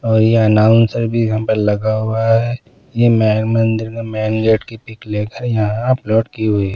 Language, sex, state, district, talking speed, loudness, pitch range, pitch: Hindi, male, Punjab, Pathankot, 205 wpm, -15 LUFS, 110-115 Hz, 110 Hz